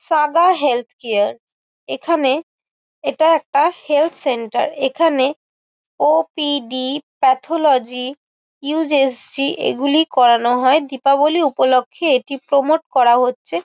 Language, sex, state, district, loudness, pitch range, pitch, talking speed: Bengali, female, West Bengal, Malda, -17 LUFS, 255-315 Hz, 280 Hz, 100 wpm